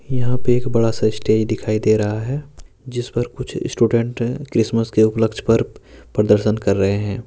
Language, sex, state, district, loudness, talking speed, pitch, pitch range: Hindi, male, Jharkhand, Deoghar, -19 LUFS, 180 wpm, 115 Hz, 110-125 Hz